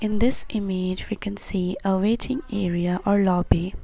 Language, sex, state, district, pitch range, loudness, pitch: English, female, Assam, Sonitpur, 185-215 Hz, -24 LUFS, 200 Hz